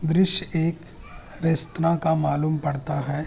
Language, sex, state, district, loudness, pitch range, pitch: Hindi, male, Uttar Pradesh, Hamirpur, -23 LUFS, 155-165 Hz, 160 Hz